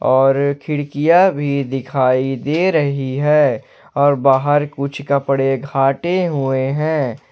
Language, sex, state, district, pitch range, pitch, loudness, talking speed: Hindi, male, Jharkhand, Ranchi, 135-150 Hz, 140 Hz, -16 LUFS, 115 wpm